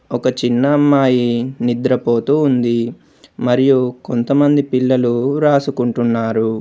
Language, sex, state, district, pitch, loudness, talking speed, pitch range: Telugu, male, Telangana, Komaram Bheem, 125 Hz, -15 LUFS, 80 wpm, 120-135 Hz